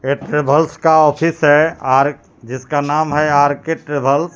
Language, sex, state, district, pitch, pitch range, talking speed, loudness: Hindi, male, Jharkhand, Palamu, 145 Hz, 140-155 Hz, 165 wpm, -14 LUFS